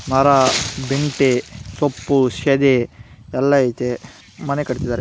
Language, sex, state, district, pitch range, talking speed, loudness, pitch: Kannada, female, Karnataka, Gulbarga, 125-140 Hz, 120 wpm, -18 LUFS, 130 Hz